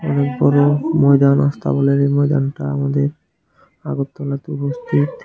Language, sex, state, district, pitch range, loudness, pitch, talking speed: Bengali, male, Tripura, West Tripura, 140-145 Hz, -17 LUFS, 140 Hz, 55 wpm